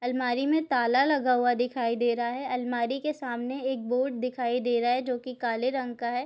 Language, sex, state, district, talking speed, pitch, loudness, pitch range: Hindi, female, Bihar, Darbhanga, 230 wpm, 250 Hz, -28 LUFS, 240-260 Hz